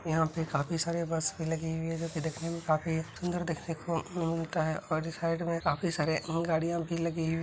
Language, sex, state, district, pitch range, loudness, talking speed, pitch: Hindi, male, Bihar, Begusarai, 160-170 Hz, -32 LUFS, 225 wpm, 165 Hz